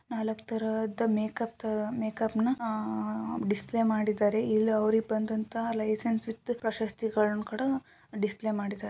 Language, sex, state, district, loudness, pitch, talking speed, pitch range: Kannada, female, Karnataka, Shimoga, -30 LUFS, 220 Hz, 120 wpm, 215-225 Hz